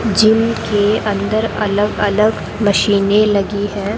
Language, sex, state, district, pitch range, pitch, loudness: Hindi, male, Rajasthan, Bikaner, 200-215 Hz, 210 Hz, -15 LUFS